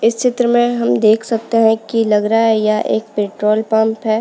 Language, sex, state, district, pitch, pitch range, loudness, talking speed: Hindi, female, Uttarakhand, Uttarkashi, 220 Hz, 215-230 Hz, -15 LUFS, 225 wpm